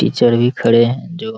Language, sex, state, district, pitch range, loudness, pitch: Hindi, male, Bihar, Araria, 120-170 Hz, -14 LUFS, 120 Hz